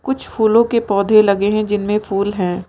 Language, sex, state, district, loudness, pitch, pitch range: Hindi, female, Uttar Pradesh, Lucknow, -16 LUFS, 210 Hz, 200-220 Hz